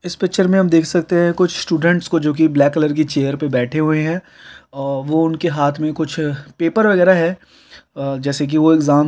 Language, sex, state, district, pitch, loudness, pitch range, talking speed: Hindi, male, Uttar Pradesh, Hamirpur, 160 Hz, -16 LUFS, 145-175 Hz, 250 wpm